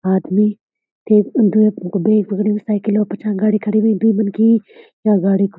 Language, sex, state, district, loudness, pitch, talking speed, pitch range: Garhwali, female, Uttarakhand, Uttarkashi, -16 LUFS, 210 Hz, 170 wpm, 200-215 Hz